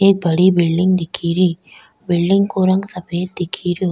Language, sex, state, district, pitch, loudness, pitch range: Rajasthani, female, Rajasthan, Nagaur, 180 Hz, -17 LUFS, 175-190 Hz